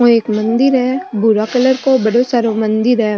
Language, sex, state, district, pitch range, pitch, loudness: Marwari, female, Rajasthan, Nagaur, 220-255 Hz, 235 Hz, -14 LUFS